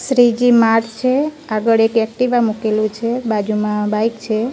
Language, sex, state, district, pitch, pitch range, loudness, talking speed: Gujarati, female, Gujarat, Gandhinagar, 225 Hz, 215-245 Hz, -16 LUFS, 145 wpm